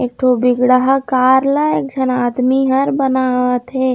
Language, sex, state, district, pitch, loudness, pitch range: Chhattisgarhi, female, Chhattisgarh, Raigarh, 255 Hz, -14 LUFS, 250-265 Hz